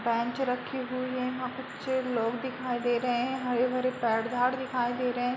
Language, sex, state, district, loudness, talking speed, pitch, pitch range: Hindi, female, Uttar Pradesh, Jalaun, -30 LUFS, 210 wpm, 250 Hz, 245-255 Hz